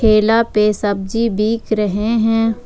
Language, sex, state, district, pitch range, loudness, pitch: Hindi, female, Jharkhand, Ranchi, 210-225 Hz, -16 LUFS, 220 Hz